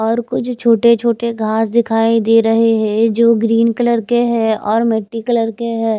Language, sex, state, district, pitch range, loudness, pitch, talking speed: Hindi, female, Chandigarh, Chandigarh, 225-235 Hz, -14 LUFS, 230 Hz, 190 wpm